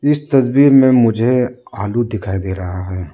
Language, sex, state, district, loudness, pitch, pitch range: Hindi, male, Arunachal Pradesh, Lower Dibang Valley, -15 LUFS, 120 Hz, 95-130 Hz